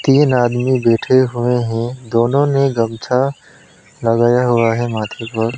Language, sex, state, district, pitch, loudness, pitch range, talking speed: Hindi, male, West Bengal, Alipurduar, 120 Hz, -16 LUFS, 115-130 Hz, 140 wpm